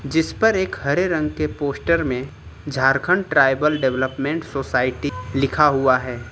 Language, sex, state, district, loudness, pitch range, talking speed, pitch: Hindi, male, Jharkhand, Ranchi, -20 LUFS, 130-155 Hz, 140 wpm, 140 Hz